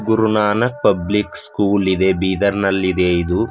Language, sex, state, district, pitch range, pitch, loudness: Kannada, male, Karnataka, Bidar, 95-110 Hz, 100 Hz, -17 LUFS